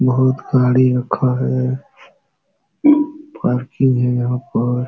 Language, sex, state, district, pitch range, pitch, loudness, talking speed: Hindi, male, Uttar Pradesh, Jalaun, 125-130 Hz, 130 Hz, -17 LUFS, 100 wpm